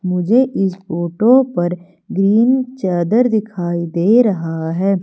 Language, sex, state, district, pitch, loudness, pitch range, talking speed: Hindi, female, Madhya Pradesh, Umaria, 190 Hz, -16 LUFS, 175-230 Hz, 120 wpm